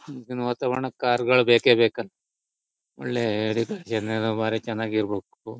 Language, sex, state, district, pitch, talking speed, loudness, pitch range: Kannada, male, Karnataka, Shimoga, 115 Hz, 130 wpm, -24 LUFS, 110-125 Hz